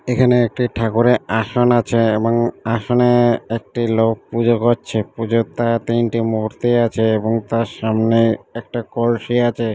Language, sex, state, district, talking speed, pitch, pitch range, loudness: Bengali, male, West Bengal, Malda, 135 wpm, 115 Hz, 115-120 Hz, -17 LUFS